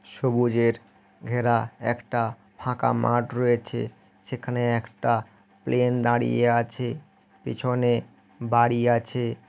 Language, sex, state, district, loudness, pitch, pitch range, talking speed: Bengali, male, West Bengal, Malda, -25 LUFS, 120 Hz, 115-120 Hz, 90 wpm